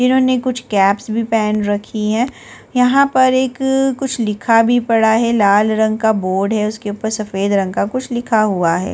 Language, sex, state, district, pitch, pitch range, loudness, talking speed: Hindi, female, Delhi, New Delhi, 220 Hz, 210-250 Hz, -15 LUFS, 195 wpm